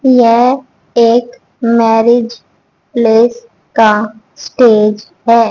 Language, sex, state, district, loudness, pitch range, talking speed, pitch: Hindi, female, Haryana, Charkhi Dadri, -11 LUFS, 225-240 Hz, 75 wpm, 230 Hz